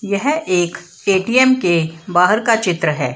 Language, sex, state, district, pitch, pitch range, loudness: Hindi, female, Bihar, Samastipur, 180 Hz, 170-220 Hz, -16 LUFS